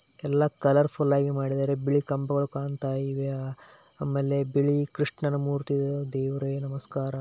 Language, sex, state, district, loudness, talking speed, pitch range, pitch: Kannada, male, Karnataka, Belgaum, -27 LUFS, 100 wpm, 135-140 Hz, 140 Hz